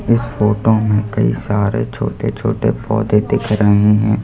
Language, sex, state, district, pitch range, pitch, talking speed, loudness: Hindi, male, Madhya Pradesh, Bhopal, 105-110 Hz, 105 Hz, 155 wpm, -16 LUFS